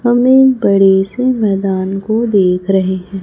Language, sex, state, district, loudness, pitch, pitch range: Hindi, male, Chhattisgarh, Raipur, -12 LUFS, 195 Hz, 190-240 Hz